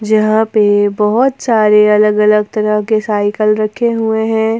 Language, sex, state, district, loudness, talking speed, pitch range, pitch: Hindi, female, Jharkhand, Ranchi, -12 LUFS, 155 wpm, 210-220 Hz, 215 Hz